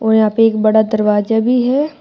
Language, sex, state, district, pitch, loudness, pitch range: Hindi, female, Uttar Pradesh, Shamli, 220 Hz, -13 LUFS, 215-245 Hz